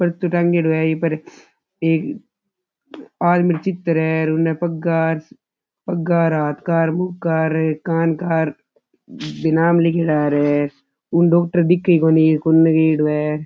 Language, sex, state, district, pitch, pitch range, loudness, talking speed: Rajasthani, male, Rajasthan, Churu, 165 Hz, 160-170 Hz, -18 LUFS, 125 wpm